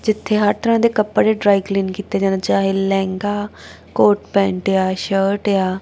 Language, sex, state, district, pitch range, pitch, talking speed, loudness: Punjabi, female, Punjab, Kapurthala, 195-210 Hz, 195 Hz, 165 wpm, -17 LUFS